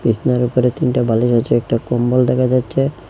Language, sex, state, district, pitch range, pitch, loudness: Bengali, male, Assam, Hailakandi, 120-125 Hz, 125 Hz, -16 LUFS